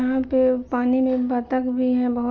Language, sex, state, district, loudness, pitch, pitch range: Hindi, female, Uttar Pradesh, Jalaun, -21 LUFS, 255 Hz, 250-255 Hz